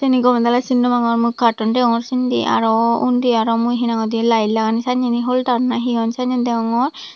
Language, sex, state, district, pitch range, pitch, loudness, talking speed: Chakma, female, Tripura, Dhalai, 230-250 Hz, 240 Hz, -17 LUFS, 215 wpm